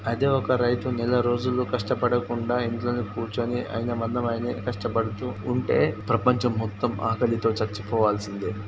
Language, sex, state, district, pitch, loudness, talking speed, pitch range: Telugu, male, Telangana, Karimnagar, 120 Hz, -25 LUFS, 115 wpm, 115-125 Hz